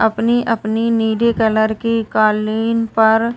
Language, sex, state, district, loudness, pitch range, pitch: Hindi, female, Uttar Pradesh, Ghazipur, -16 LUFS, 220-230 Hz, 225 Hz